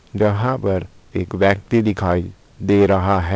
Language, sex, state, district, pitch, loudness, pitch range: Hindi, male, Uttar Pradesh, Saharanpur, 100 Hz, -19 LUFS, 95-105 Hz